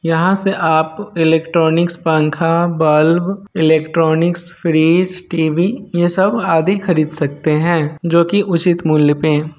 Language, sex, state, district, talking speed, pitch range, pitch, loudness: Hindi, male, Bihar, Sitamarhi, 125 wpm, 160-175 Hz, 165 Hz, -14 LUFS